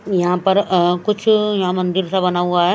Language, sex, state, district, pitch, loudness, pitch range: Hindi, female, Himachal Pradesh, Shimla, 185 Hz, -17 LUFS, 180-200 Hz